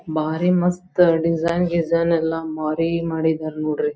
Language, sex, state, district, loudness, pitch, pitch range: Kannada, female, Karnataka, Belgaum, -20 LUFS, 165 Hz, 155-170 Hz